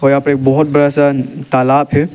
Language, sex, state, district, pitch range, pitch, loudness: Hindi, male, Arunachal Pradesh, Lower Dibang Valley, 135-145 Hz, 145 Hz, -12 LUFS